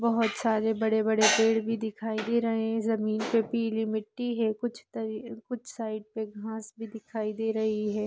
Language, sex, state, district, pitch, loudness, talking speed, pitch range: Hindi, female, Chhattisgarh, Sarguja, 220 Hz, -29 LUFS, 185 wpm, 220-225 Hz